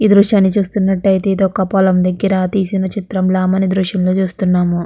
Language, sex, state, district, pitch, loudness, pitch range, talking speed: Telugu, female, Andhra Pradesh, Guntur, 190 Hz, -14 LUFS, 185-195 Hz, 175 wpm